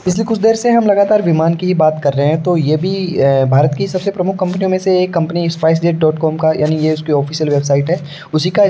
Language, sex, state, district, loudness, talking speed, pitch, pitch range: Hindi, male, Uttar Pradesh, Varanasi, -14 LUFS, 240 wpm, 165 Hz, 155-185 Hz